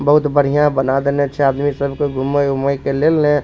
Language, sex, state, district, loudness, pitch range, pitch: Maithili, male, Bihar, Supaul, -16 LUFS, 140-145 Hz, 140 Hz